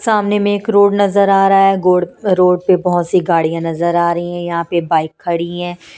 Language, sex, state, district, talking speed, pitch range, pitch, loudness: Hindi, female, Punjab, Kapurthala, 230 wpm, 170-195 Hz, 180 Hz, -14 LUFS